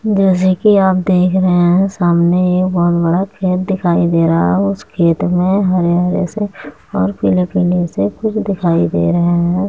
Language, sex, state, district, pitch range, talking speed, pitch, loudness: Hindi, female, Uttar Pradesh, Muzaffarnagar, 170-190 Hz, 165 wpm, 180 Hz, -14 LUFS